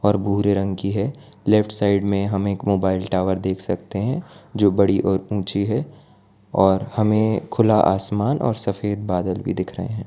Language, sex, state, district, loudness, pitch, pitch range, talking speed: Hindi, male, Gujarat, Valsad, -21 LUFS, 100 Hz, 95-110 Hz, 185 wpm